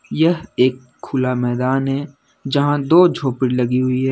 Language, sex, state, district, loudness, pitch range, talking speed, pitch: Hindi, male, Jharkhand, Deoghar, -18 LUFS, 125-145 Hz, 160 wpm, 130 Hz